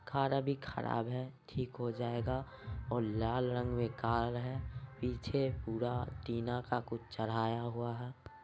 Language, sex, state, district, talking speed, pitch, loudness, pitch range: Hindi, male, Bihar, Saran, 150 wpm, 120 Hz, -38 LUFS, 115-125 Hz